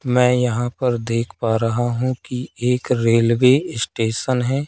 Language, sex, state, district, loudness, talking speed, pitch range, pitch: Hindi, male, Madhya Pradesh, Katni, -19 LUFS, 155 wpm, 115-125 Hz, 125 Hz